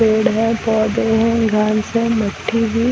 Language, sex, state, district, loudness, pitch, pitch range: Hindi, female, Chhattisgarh, Rajnandgaon, -17 LUFS, 225 Hz, 215-230 Hz